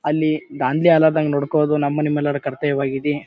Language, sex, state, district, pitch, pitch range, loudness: Kannada, male, Karnataka, Bijapur, 150 Hz, 145-155 Hz, -19 LUFS